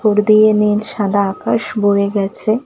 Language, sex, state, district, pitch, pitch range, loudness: Bengali, female, West Bengal, Malda, 210 Hz, 200-215 Hz, -15 LUFS